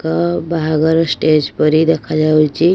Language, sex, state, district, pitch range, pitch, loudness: Odia, female, Odisha, Nuapada, 155-165 Hz, 160 Hz, -14 LUFS